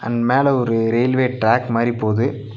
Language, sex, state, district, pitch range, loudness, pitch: Tamil, male, Tamil Nadu, Nilgiris, 115-130 Hz, -18 LUFS, 120 Hz